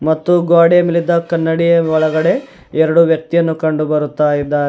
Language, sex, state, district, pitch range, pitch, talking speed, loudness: Kannada, male, Karnataka, Bidar, 155-170 Hz, 160 Hz, 130 wpm, -14 LUFS